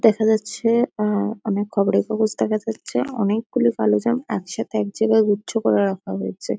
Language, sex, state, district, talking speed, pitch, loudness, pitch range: Bengali, female, West Bengal, Kolkata, 190 wpm, 215 Hz, -21 LUFS, 200-225 Hz